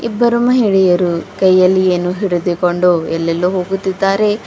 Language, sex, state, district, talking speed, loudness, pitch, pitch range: Kannada, female, Karnataka, Bidar, 95 wpm, -14 LUFS, 185 Hz, 175-200 Hz